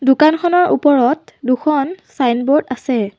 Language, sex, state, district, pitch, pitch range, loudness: Assamese, female, Assam, Sonitpur, 275 Hz, 255-305 Hz, -15 LUFS